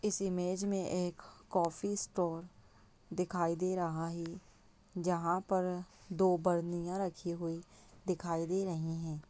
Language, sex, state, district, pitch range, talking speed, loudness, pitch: Hindi, female, Bihar, Lakhisarai, 170-185 Hz, 130 wpm, -36 LUFS, 180 Hz